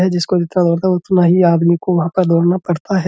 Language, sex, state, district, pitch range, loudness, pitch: Hindi, male, Uttar Pradesh, Budaun, 170-185 Hz, -14 LUFS, 175 Hz